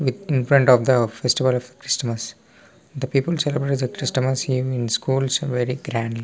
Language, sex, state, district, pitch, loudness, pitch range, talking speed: Telugu, male, Telangana, Nalgonda, 130 Hz, -21 LUFS, 125-135 Hz, 165 wpm